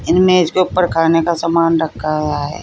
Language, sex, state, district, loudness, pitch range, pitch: Hindi, female, Uttar Pradesh, Saharanpur, -15 LUFS, 155-175 Hz, 165 Hz